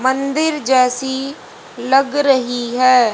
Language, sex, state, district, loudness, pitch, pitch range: Hindi, female, Haryana, Charkhi Dadri, -16 LUFS, 265 Hz, 250-275 Hz